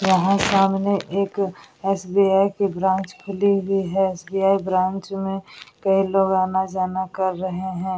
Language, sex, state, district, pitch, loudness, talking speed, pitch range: Hindi, female, Bihar, Vaishali, 195 Hz, -21 LUFS, 135 wpm, 190-195 Hz